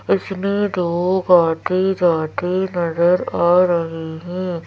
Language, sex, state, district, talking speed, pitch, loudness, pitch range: Hindi, female, Madhya Pradesh, Bhopal, 75 wpm, 180 Hz, -18 LUFS, 170-185 Hz